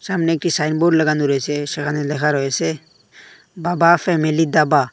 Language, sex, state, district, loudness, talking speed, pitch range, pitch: Bengali, male, Assam, Hailakandi, -18 LUFS, 145 wpm, 145-165 Hz, 155 Hz